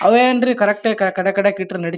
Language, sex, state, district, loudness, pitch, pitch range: Kannada, male, Karnataka, Bijapur, -16 LUFS, 200 Hz, 190-225 Hz